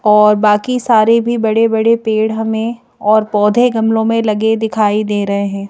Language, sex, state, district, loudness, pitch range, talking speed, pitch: Hindi, female, Madhya Pradesh, Bhopal, -13 LUFS, 210-230 Hz, 170 wpm, 220 Hz